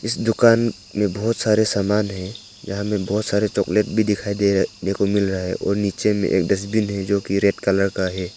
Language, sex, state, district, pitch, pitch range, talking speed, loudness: Hindi, male, Arunachal Pradesh, Papum Pare, 100 Hz, 100-105 Hz, 230 wpm, -20 LUFS